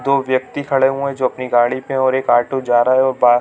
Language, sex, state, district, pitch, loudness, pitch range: Hindi, male, Chhattisgarh, Bilaspur, 130 Hz, -16 LUFS, 125-135 Hz